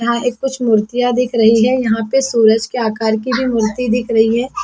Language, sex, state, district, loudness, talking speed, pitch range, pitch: Hindi, female, Chhattisgarh, Bastar, -15 LUFS, 235 wpm, 225-250 Hz, 235 Hz